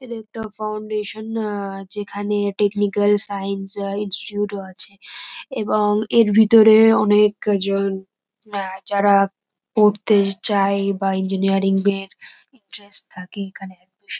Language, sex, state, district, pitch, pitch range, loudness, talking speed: Bengali, female, West Bengal, North 24 Parganas, 205 Hz, 195-215 Hz, -19 LUFS, 115 wpm